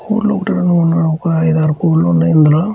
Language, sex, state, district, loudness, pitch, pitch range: Telugu, male, Andhra Pradesh, Chittoor, -13 LUFS, 165 Hz, 160-185 Hz